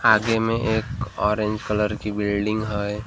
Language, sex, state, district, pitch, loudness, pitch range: Hindi, male, Maharashtra, Gondia, 105 Hz, -23 LUFS, 105-110 Hz